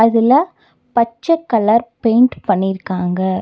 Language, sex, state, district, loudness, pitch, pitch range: Tamil, female, Tamil Nadu, Nilgiris, -15 LUFS, 230 Hz, 190-245 Hz